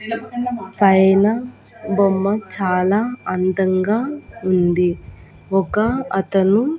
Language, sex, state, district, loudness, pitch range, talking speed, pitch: Telugu, female, Andhra Pradesh, Annamaya, -18 LUFS, 190-230 Hz, 60 wpm, 195 Hz